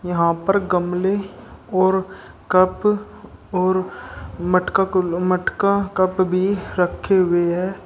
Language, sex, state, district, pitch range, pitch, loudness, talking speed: Hindi, male, Uttar Pradesh, Shamli, 180-195 Hz, 185 Hz, -20 LUFS, 105 wpm